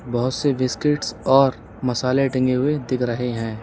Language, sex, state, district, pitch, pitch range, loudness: Hindi, male, Uttar Pradesh, Lalitpur, 130 Hz, 120-135 Hz, -21 LUFS